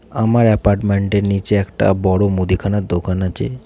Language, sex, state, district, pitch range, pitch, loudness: Bengali, male, West Bengal, Jhargram, 95-105 Hz, 100 Hz, -16 LUFS